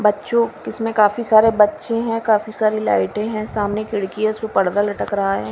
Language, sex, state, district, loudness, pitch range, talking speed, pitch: Hindi, female, Himachal Pradesh, Shimla, -18 LUFS, 205-225 Hz, 195 wpm, 215 Hz